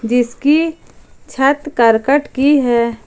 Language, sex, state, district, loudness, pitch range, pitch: Hindi, female, Jharkhand, Ranchi, -14 LUFS, 235-290 Hz, 265 Hz